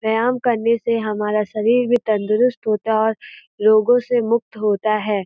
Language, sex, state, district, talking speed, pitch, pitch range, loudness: Hindi, female, Uttar Pradesh, Gorakhpur, 170 wpm, 220 Hz, 215-235 Hz, -18 LUFS